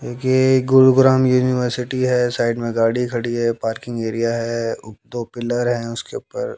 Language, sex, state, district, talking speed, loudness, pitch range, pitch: Hindi, male, Haryana, Jhajjar, 155 wpm, -18 LUFS, 115-130 Hz, 120 Hz